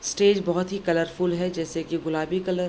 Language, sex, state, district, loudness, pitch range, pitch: Hindi, female, Bihar, Darbhanga, -25 LUFS, 165-185 Hz, 175 Hz